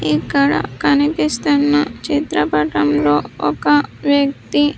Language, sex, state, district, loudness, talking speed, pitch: Telugu, female, Andhra Pradesh, Sri Satya Sai, -16 LUFS, 65 wpm, 150 Hz